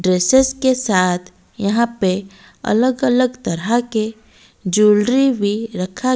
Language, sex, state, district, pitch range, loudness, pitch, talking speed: Hindi, female, Odisha, Malkangiri, 190-255 Hz, -17 LUFS, 220 Hz, 115 wpm